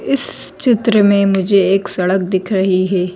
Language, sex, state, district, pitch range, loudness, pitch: Hindi, female, Madhya Pradesh, Bhopal, 185-205 Hz, -14 LUFS, 195 Hz